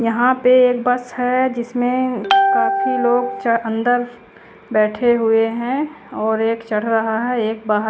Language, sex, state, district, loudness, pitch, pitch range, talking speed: Hindi, female, Chandigarh, Chandigarh, -17 LUFS, 245 Hz, 225-255 Hz, 150 wpm